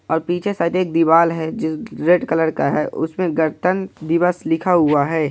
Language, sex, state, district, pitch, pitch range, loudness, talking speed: Hindi, male, Bihar, Purnia, 165 Hz, 160-180 Hz, -18 LUFS, 205 wpm